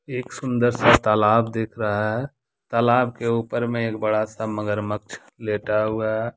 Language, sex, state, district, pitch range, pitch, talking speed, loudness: Hindi, male, Jharkhand, Deoghar, 110-120 Hz, 115 Hz, 170 wpm, -22 LUFS